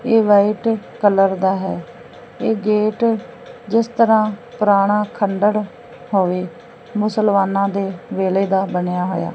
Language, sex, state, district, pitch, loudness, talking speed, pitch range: Punjabi, female, Punjab, Fazilka, 210 Hz, -18 LUFS, 115 wpm, 195-230 Hz